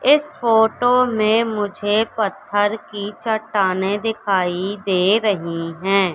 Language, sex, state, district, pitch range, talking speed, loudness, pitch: Hindi, female, Madhya Pradesh, Katni, 195-225 Hz, 105 wpm, -19 LUFS, 210 Hz